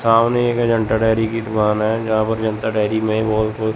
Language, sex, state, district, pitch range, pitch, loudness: Hindi, male, Chandigarh, Chandigarh, 110-115 Hz, 110 Hz, -18 LUFS